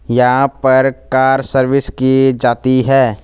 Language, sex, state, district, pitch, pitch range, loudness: Hindi, male, Punjab, Fazilka, 130 Hz, 125-135 Hz, -13 LUFS